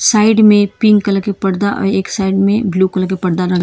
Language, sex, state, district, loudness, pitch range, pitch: Hindi, female, Karnataka, Bangalore, -13 LUFS, 190-210 Hz, 195 Hz